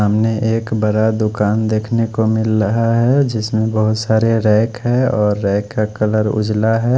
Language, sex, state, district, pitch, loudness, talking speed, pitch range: Hindi, male, Odisha, Khordha, 110 Hz, -16 LUFS, 180 wpm, 110-115 Hz